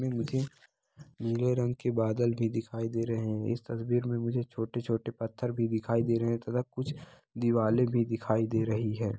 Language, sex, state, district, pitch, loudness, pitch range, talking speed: Hindi, male, Bihar, Araria, 115 Hz, -31 LUFS, 115-125 Hz, 190 wpm